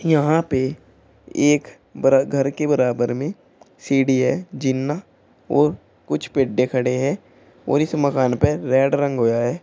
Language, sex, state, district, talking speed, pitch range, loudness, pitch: Hindi, male, Uttar Pradesh, Shamli, 150 wpm, 130-150 Hz, -20 LUFS, 135 Hz